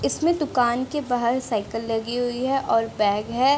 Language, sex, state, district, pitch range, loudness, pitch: Hindi, female, Bihar, Begusarai, 225-265 Hz, -23 LUFS, 245 Hz